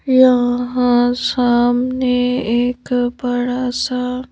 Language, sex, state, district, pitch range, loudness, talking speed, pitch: Hindi, female, Madhya Pradesh, Bhopal, 245-250 Hz, -16 LUFS, 70 wpm, 250 Hz